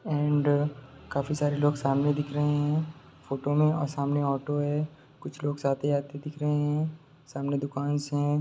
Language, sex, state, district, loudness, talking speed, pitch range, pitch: Hindi, male, Bihar, Sitamarhi, -28 LUFS, 170 wpm, 140-150 Hz, 145 Hz